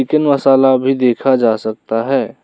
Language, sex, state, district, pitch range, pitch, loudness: Hindi, male, Arunachal Pradesh, Lower Dibang Valley, 115-135 Hz, 130 Hz, -14 LUFS